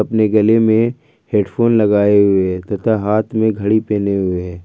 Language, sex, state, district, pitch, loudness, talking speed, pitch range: Hindi, male, Jharkhand, Ranchi, 105 Hz, -15 LUFS, 180 wpm, 100-110 Hz